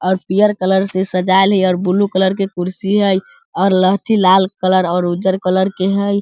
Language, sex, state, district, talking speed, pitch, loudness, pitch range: Hindi, male, Bihar, Sitamarhi, 200 wpm, 190 Hz, -15 LUFS, 185-195 Hz